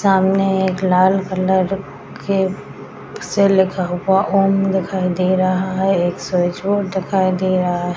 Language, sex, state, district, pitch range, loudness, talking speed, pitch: Hindi, female, Bihar, Madhepura, 185-195 Hz, -17 LUFS, 150 wpm, 190 Hz